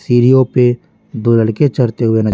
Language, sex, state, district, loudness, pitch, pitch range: Hindi, male, Bihar, Patna, -13 LUFS, 120 Hz, 115-130 Hz